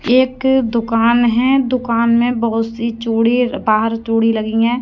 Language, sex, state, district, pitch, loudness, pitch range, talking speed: Hindi, female, Haryana, Rohtak, 235 Hz, -15 LUFS, 225-250 Hz, 150 wpm